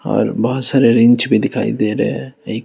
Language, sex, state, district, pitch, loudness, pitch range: Hindi, male, Haryana, Rohtak, 115 Hz, -15 LUFS, 110-125 Hz